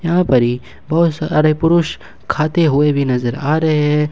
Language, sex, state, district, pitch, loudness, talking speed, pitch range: Hindi, male, Jharkhand, Ranchi, 155 Hz, -15 LUFS, 190 wpm, 140-160 Hz